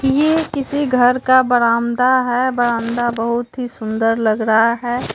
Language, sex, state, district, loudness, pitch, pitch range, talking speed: Hindi, female, Bihar, Katihar, -16 LUFS, 245 Hz, 230-260 Hz, 150 wpm